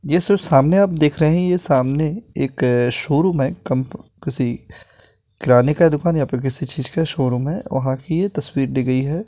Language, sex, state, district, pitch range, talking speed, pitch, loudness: Hindi, male, Bihar, Purnia, 130-165 Hz, 205 wpm, 140 Hz, -18 LUFS